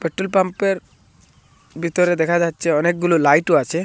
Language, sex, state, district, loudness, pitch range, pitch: Bengali, male, Assam, Hailakandi, -18 LUFS, 165-180 Hz, 170 Hz